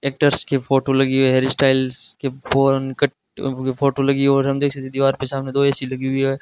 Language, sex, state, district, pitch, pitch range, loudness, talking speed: Hindi, male, Rajasthan, Bikaner, 135 Hz, 130-140 Hz, -19 LUFS, 235 wpm